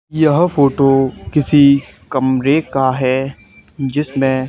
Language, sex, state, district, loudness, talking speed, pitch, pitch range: Hindi, male, Haryana, Charkhi Dadri, -15 LUFS, 95 wpm, 135 Hz, 130-145 Hz